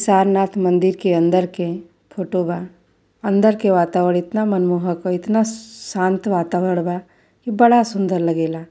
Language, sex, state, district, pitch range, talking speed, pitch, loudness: Bhojpuri, female, Uttar Pradesh, Varanasi, 175-200 Hz, 140 wpm, 185 Hz, -18 LUFS